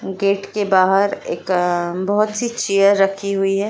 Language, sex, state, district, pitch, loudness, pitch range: Hindi, female, Bihar, Lakhisarai, 195 Hz, -18 LUFS, 190-200 Hz